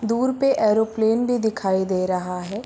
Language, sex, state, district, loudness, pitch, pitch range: Hindi, female, Bihar, Gopalganj, -21 LUFS, 220 Hz, 190-230 Hz